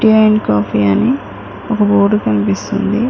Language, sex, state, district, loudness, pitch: Telugu, female, Telangana, Mahabubabad, -13 LUFS, 205 Hz